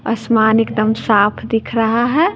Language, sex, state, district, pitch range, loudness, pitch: Hindi, female, Bihar, West Champaran, 220-230 Hz, -15 LUFS, 225 Hz